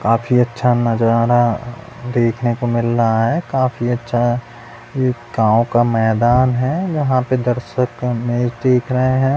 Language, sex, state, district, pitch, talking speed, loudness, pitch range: Hindi, male, Bihar, Purnia, 120 Hz, 140 wpm, -17 LUFS, 120-125 Hz